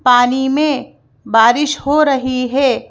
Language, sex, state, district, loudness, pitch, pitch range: Hindi, female, Madhya Pradesh, Bhopal, -14 LUFS, 265 Hz, 250-290 Hz